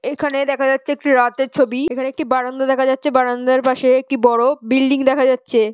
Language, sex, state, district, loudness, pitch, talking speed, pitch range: Bengali, female, West Bengal, North 24 Parganas, -16 LUFS, 265 Hz, 190 wpm, 255-275 Hz